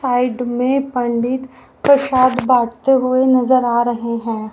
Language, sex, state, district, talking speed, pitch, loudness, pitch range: Hindi, female, Haryana, Rohtak, 135 wpm, 250 Hz, -16 LUFS, 240-260 Hz